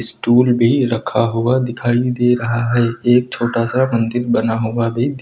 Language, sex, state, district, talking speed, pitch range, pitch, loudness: Hindi, male, Uttar Pradesh, Lucknow, 195 wpm, 115-125 Hz, 120 Hz, -16 LUFS